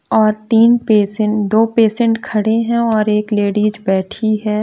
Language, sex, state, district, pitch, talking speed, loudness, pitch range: Hindi, female, Bihar, West Champaran, 215 Hz, 155 wpm, -15 LUFS, 210-225 Hz